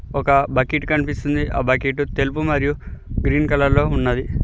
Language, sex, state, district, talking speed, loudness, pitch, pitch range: Telugu, male, Telangana, Mahabubabad, 150 wpm, -19 LUFS, 140 Hz, 135-145 Hz